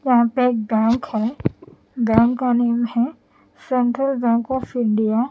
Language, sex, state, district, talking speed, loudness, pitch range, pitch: Hindi, female, Bihar, Katihar, 145 wpm, -20 LUFS, 230-255 Hz, 240 Hz